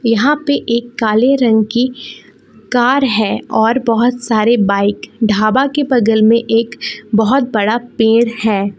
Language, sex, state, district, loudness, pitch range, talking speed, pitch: Hindi, female, Jharkhand, Palamu, -13 LUFS, 220-250 Hz, 145 wpm, 230 Hz